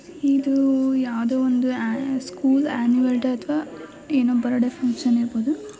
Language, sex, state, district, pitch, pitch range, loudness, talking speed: Kannada, female, Karnataka, Shimoga, 260 Hz, 245-275 Hz, -22 LUFS, 135 wpm